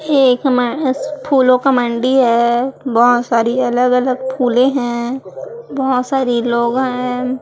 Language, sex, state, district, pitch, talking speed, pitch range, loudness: Hindi, female, Chhattisgarh, Raipur, 255 Hz, 145 wpm, 240-265 Hz, -15 LUFS